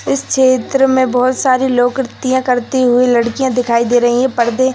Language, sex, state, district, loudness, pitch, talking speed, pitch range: Hindi, female, Uttar Pradesh, Hamirpur, -13 LUFS, 250 Hz, 190 wpm, 245-260 Hz